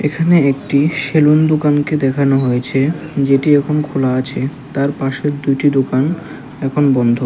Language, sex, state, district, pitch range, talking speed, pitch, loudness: Bengali, male, Tripura, West Tripura, 135-150 Hz, 130 wpm, 140 Hz, -15 LUFS